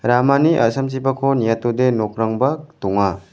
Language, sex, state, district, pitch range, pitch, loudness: Garo, male, Meghalaya, West Garo Hills, 115-135 Hz, 125 Hz, -18 LUFS